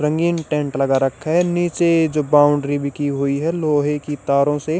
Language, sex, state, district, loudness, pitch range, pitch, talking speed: Hindi, male, Maharashtra, Gondia, -18 LUFS, 145-165 Hz, 150 Hz, 200 wpm